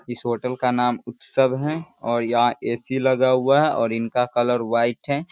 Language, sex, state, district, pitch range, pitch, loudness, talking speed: Hindi, male, Bihar, Darbhanga, 120-130 Hz, 125 Hz, -21 LUFS, 190 wpm